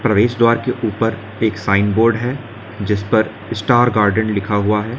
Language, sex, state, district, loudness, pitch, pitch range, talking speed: Hindi, male, Uttar Pradesh, Lalitpur, -17 LUFS, 110 Hz, 105-115 Hz, 190 wpm